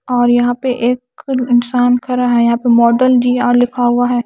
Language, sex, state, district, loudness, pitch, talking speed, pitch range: Hindi, female, Haryana, Charkhi Dadri, -13 LUFS, 245 Hz, 210 wpm, 240-250 Hz